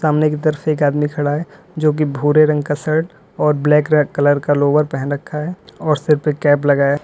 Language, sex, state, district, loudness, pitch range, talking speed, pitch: Hindi, male, Uttar Pradesh, Lalitpur, -16 LUFS, 145-155 Hz, 240 wpm, 150 Hz